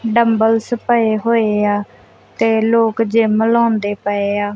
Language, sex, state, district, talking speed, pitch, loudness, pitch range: Punjabi, female, Punjab, Kapurthala, 130 wpm, 225 Hz, -15 LUFS, 210-230 Hz